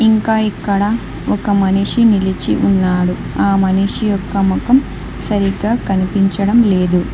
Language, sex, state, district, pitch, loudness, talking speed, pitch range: Telugu, female, Telangana, Hyderabad, 200 Hz, -15 LUFS, 110 wpm, 190-215 Hz